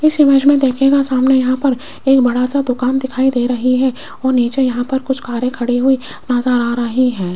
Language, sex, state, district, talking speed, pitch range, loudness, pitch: Hindi, female, Rajasthan, Jaipur, 220 wpm, 245-265 Hz, -15 LUFS, 260 Hz